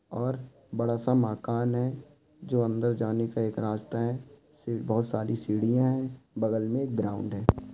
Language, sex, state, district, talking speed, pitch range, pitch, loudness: Hindi, male, Andhra Pradesh, Anantapur, 165 wpm, 110-130 Hz, 115 Hz, -29 LUFS